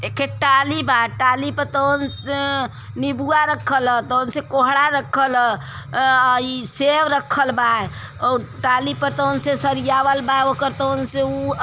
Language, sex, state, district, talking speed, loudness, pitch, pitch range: Bhojpuri, female, Uttar Pradesh, Varanasi, 165 wpm, -18 LUFS, 270 Hz, 250-280 Hz